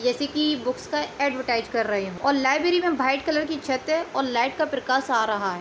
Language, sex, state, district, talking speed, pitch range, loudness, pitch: Hindi, female, Uttar Pradesh, Etah, 245 wpm, 245-300 Hz, -24 LUFS, 270 Hz